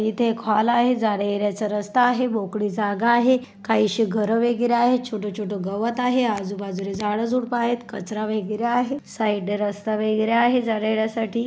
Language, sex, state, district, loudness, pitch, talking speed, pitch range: Marathi, female, Maharashtra, Solapur, -22 LUFS, 220 Hz, 160 wpm, 210-240 Hz